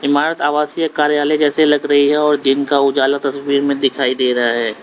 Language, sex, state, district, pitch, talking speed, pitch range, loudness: Hindi, male, Uttar Pradesh, Lalitpur, 140 Hz, 210 wpm, 135-150 Hz, -15 LUFS